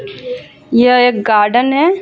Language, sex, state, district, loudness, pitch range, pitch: Hindi, female, Jharkhand, Ranchi, -11 LUFS, 235-385 Hz, 250 Hz